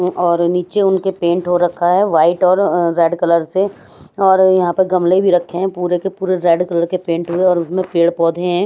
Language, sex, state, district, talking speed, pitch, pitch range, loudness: Hindi, female, Odisha, Sambalpur, 230 wpm, 180 Hz, 170-185 Hz, -15 LUFS